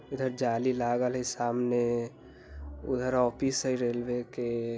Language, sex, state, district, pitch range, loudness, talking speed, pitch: Bajjika, male, Bihar, Vaishali, 120-125 Hz, -30 LUFS, 125 wpm, 120 Hz